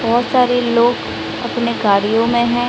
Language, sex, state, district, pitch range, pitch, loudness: Hindi, female, Odisha, Sambalpur, 235-245 Hz, 235 Hz, -16 LUFS